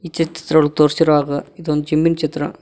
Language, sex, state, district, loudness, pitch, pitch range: Kannada, male, Karnataka, Koppal, -17 LUFS, 155 Hz, 150-165 Hz